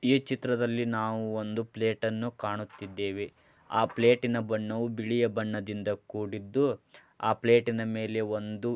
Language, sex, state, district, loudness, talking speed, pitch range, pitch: Kannada, male, Karnataka, Dharwad, -30 LUFS, 105 wpm, 105-120 Hz, 110 Hz